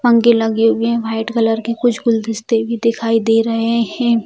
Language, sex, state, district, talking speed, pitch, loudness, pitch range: Hindi, female, Bihar, Jamui, 195 wpm, 230 Hz, -16 LUFS, 225-235 Hz